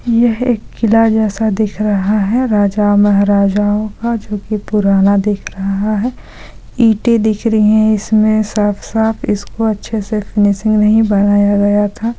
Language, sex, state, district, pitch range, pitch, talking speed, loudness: Hindi, female, Bihar, Supaul, 205-220 Hz, 210 Hz, 150 wpm, -13 LUFS